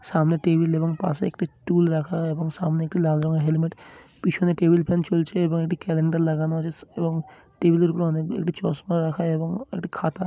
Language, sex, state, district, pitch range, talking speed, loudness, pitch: Bengali, male, West Bengal, Dakshin Dinajpur, 160-175 Hz, 205 wpm, -23 LUFS, 165 Hz